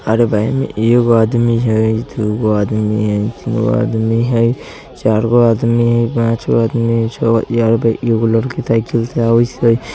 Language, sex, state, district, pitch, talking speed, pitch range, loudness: Bajjika, male, Bihar, Vaishali, 115 Hz, 180 wpm, 110-120 Hz, -14 LUFS